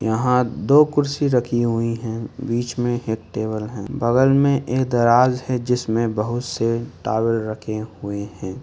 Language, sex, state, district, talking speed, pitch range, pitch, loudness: Hindi, male, Uttar Pradesh, Ghazipur, 175 wpm, 110-125 Hz, 120 Hz, -20 LUFS